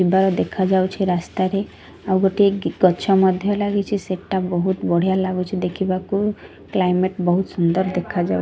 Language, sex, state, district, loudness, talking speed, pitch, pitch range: Odia, female, Odisha, Sambalpur, -20 LUFS, 135 wpm, 190 Hz, 180-195 Hz